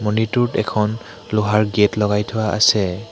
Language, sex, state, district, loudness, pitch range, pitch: Assamese, male, Assam, Hailakandi, -18 LUFS, 105-110 Hz, 105 Hz